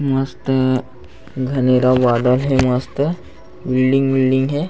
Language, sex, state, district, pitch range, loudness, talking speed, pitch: Chhattisgarhi, male, Chhattisgarh, Bastar, 125-135 Hz, -17 LUFS, 115 wpm, 130 Hz